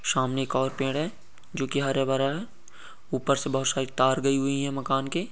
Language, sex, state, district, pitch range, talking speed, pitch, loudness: Hindi, male, Bihar, Saran, 135-140 Hz, 215 wpm, 135 Hz, -27 LUFS